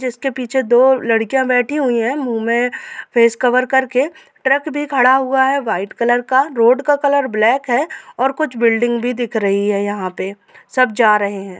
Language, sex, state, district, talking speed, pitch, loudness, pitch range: Hindi, female, Jharkhand, Sahebganj, 200 wpm, 250 Hz, -16 LUFS, 230-265 Hz